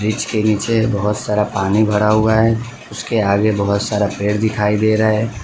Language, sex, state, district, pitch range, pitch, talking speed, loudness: Hindi, male, Gujarat, Valsad, 105-110 Hz, 105 Hz, 185 wpm, -16 LUFS